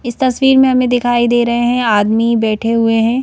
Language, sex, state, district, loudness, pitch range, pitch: Hindi, female, Madhya Pradesh, Bhopal, -13 LUFS, 225-250 Hz, 240 Hz